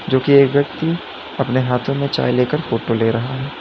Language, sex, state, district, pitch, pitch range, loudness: Hindi, male, Uttar Pradesh, Lalitpur, 135 Hz, 125-140 Hz, -17 LUFS